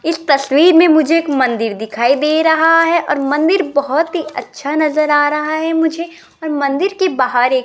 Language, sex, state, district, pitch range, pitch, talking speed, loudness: Hindi, female, Rajasthan, Jaipur, 280-330 Hz, 305 Hz, 195 wpm, -14 LUFS